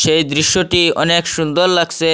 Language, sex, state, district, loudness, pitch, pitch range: Bengali, male, Assam, Hailakandi, -14 LUFS, 165 Hz, 155-170 Hz